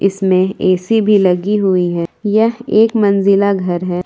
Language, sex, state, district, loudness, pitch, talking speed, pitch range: Hindi, female, Jharkhand, Palamu, -14 LUFS, 195 Hz, 160 wpm, 185-210 Hz